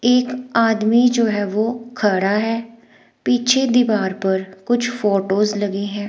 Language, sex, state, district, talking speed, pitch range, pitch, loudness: Hindi, female, Himachal Pradesh, Shimla, 140 wpm, 205-240 Hz, 220 Hz, -18 LUFS